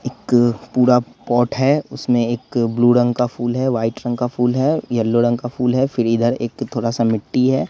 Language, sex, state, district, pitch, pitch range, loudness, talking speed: Hindi, male, Bihar, West Champaran, 120 Hz, 120-125 Hz, -18 LUFS, 220 wpm